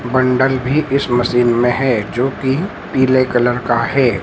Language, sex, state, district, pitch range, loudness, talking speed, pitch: Hindi, male, Madhya Pradesh, Dhar, 120-130 Hz, -15 LUFS, 155 wpm, 130 Hz